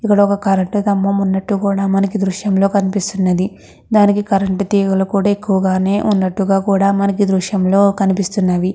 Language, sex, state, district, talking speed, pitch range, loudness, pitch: Telugu, female, Andhra Pradesh, Krishna, 150 wpm, 190-200 Hz, -15 LUFS, 195 Hz